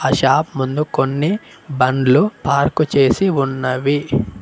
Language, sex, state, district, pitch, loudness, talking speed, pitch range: Telugu, male, Telangana, Mahabubabad, 140 Hz, -17 LUFS, 95 wpm, 130-150 Hz